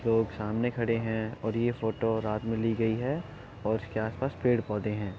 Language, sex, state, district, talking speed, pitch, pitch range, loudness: Hindi, male, Uttar Pradesh, Etah, 195 wpm, 110 Hz, 110-120 Hz, -30 LUFS